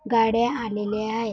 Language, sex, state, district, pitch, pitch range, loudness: Marathi, female, Maharashtra, Dhule, 225 Hz, 215-235 Hz, -24 LUFS